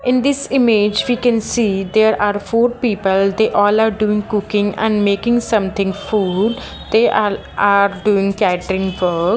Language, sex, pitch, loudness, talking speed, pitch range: English, female, 210 Hz, -16 LUFS, 165 wpm, 200-225 Hz